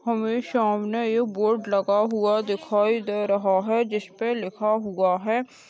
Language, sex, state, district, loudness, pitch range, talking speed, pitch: Hindi, female, Chhattisgarh, Balrampur, -24 LUFS, 200-230 Hz, 160 wpm, 215 Hz